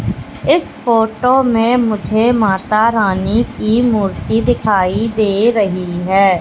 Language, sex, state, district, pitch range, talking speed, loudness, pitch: Hindi, female, Madhya Pradesh, Katni, 195-230 Hz, 110 wpm, -14 LUFS, 220 Hz